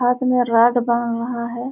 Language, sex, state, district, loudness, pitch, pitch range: Hindi, female, Jharkhand, Sahebganj, -18 LUFS, 240 Hz, 235-245 Hz